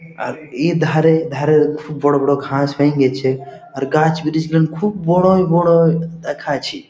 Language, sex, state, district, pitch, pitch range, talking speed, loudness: Bengali, male, West Bengal, Jhargram, 160 Hz, 145-165 Hz, 155 wpm, -16 LUFS